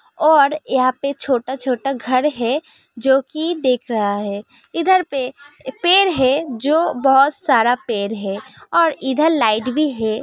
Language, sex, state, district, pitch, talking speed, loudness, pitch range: Hindi, female, Uttar Pradesh, Hamirpur, 270 Hz, 160 wpm, -17 LUFS, 245-305 Hz